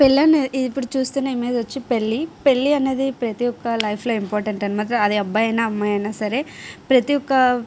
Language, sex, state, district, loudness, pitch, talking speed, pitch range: Telugu, female, Andhra Pradesh, Srikakulam, -20 LUFS, 245 Hz, 190 wpm, 215-270 Hz